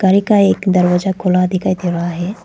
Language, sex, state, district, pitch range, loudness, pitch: Hindi, female, Arunachal Pradesh, Lower Dibang Valley, 180-195 Hz, -15 LUFS, 185 Hz